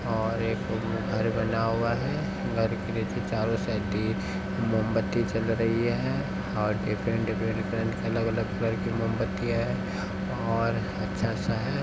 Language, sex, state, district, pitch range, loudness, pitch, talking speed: Hindi, male, Bihar, Araria, 95-115 Hz, -28 LUFS, 110 Hz, 145 wpm